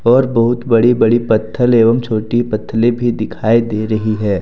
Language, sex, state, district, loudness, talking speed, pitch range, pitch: Hindi, male, Jharkhand, Deoghar, -14 LUFS, 175 wpm, 110-120 Hz, 115 Hz